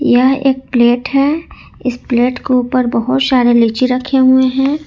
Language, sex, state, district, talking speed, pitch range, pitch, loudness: Hindi, female, Jharkhand, Ranchi, 175 wpm, 245-270 Hz, 255 Hz, -13 LUFS